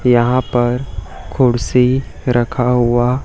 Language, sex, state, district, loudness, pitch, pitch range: Hindi, male, Chhattisgarh, Raipur, -15 LUFS, 125 Hz, 120-125 Hz